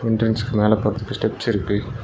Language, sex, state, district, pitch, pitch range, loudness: Tamil, male, Tamil Nadu, Nilgiris, 110 Hz, 105-115 Hz, -21 LUFS